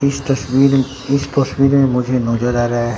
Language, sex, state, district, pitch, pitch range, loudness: Hindi, male, Bihar, Katihar, 135 Hz, 120-140 Hz, -16 LUFS